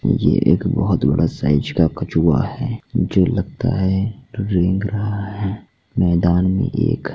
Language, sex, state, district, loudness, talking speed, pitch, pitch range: Hindi, male, Bihar, Gopalganj, -19 LUFS, 110 wpm, 95 Hz, 90-105 Hz